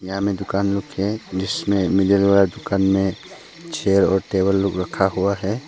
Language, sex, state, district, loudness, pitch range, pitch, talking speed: Hindi, male, Arunachal Pradesh, Papum Pare, -20 LUFS, 95-100 Hz, 100 Hz, 180 wpm